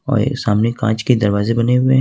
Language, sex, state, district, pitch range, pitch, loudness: Hindi, male, Jharkhand, Ranchi, 110-130 Hz, 115 Hz, -16 LUFS